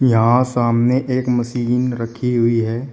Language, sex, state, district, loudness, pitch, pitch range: Hindi, male, Uttar Pradesh, Shamli, -17 LUFS, 120 Hz, 115-125 Hz